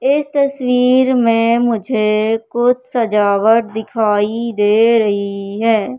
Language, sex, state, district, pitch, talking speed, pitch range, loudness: Hindi, male, Madhya Pradesh, Katni, 230 Hz, 100 wpm, 215-245 Hz, -15 LUFS